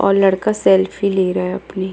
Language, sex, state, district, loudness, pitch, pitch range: Hindi, female, Chhattisgarh, Balrampur, -16 LUFS, 190 Hz, 190-195 Hz